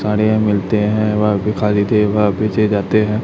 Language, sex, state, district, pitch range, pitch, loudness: Hindi, male, Chhattisgarh, Raipur, 105-110 Hz, 105 Hz, -15 LUFS